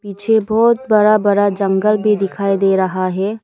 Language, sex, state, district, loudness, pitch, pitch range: Hindi, female, Arunachal Pradesh, Lower Dibang Valley, -15 LUFS, 205 Hz, 195-215 Hz